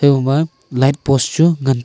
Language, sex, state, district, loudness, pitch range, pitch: Wancho, male, Arunachal Pradesh, Longding, -15 LUFS, 135-155 Hz, 135 Hz